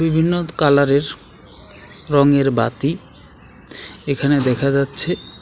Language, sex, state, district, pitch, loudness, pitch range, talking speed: Bengali, male, West Bengal, Alipurduar, 140 Hz, -17 LUFS, 135-150 Hz, 75 wpm